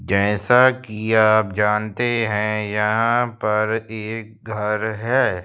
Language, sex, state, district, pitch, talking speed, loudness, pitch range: Hindi, male, Madhya Pradesh, Bhopal, 110 Hz, 110 wpm, -19 LUFS, 105-115 Hz